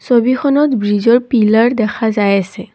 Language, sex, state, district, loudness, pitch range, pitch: Assamese, female, Assam, Kamrup Metropolitan, -13 LUFS, 205-245 Hz, 225 Hz